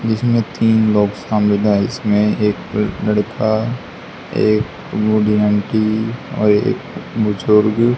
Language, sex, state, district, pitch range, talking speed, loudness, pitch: Hindi, male, Haryana, Charkhi Dadri, 105-110 Hz, 100 wpm, -16 LUFS, 105 Hz